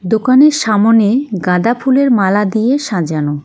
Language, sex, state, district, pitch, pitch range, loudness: Bengali, female, West Bengal, Cooch Behar, 220 Hz, 190-255 Hz, -12 LUFS